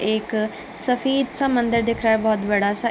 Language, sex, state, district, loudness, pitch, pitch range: Hindi, female, Bihar, Darbhanga, -21 LUFS, 230 Hz, 215-245 Hz